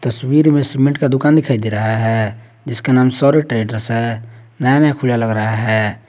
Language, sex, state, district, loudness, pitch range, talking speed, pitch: Hindi, male, Jharkhand, Garhwa, -15 LUFS, 110-140 Hz, 195 wpm, 115 Hz